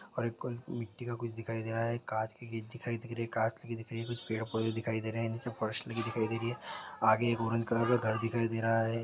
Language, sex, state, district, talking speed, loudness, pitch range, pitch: Hindi, male, Chhattisgarh, Jashpur, 285 wpm, -35 LUFS, 115-120 Hz, 115 Hz